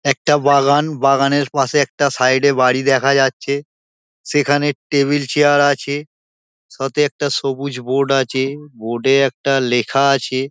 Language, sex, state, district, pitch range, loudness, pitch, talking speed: Bengali, male, West Bengal, Dakshin Dinajpur, 130-145 Hz, -16 LUFS, 140 Hz, 135 wpm